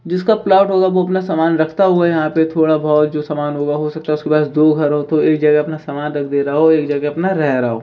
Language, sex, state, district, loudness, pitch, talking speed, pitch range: Hindi, male, Bihar, Begusarai, -15 LUFS, 155 Hz, 290 wpm, 150-165 Hz